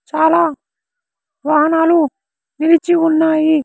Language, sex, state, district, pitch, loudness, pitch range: Telugu, male, Andhra Pradesh, Sri Satya Sai, 320 Hz, -14 LUFS, 310-335 Hz